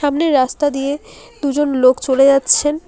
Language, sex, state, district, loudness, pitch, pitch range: Bengali, female, West Bengal, Alipurduar, -15 LUFS, 280 Hz, 270-295 Hz